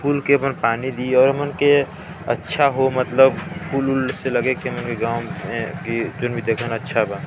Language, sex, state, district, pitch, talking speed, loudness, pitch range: Chhattisgarhi, male, Chhattisgarh, Balrampur, 135 Hz, 200 wpm, -20 LUFS, 130-145 Hz